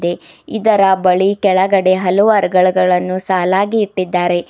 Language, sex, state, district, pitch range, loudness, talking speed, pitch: Kannada, female, Karnataka, Bidar, 180-195 Hz, -14 LUFS, 95 wpm, 185 Hz